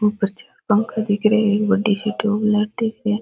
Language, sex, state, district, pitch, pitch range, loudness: Rajasthani, female, Rajasthan, Nagaur, 210 Hz, 210-220 Hz, -19 LUFS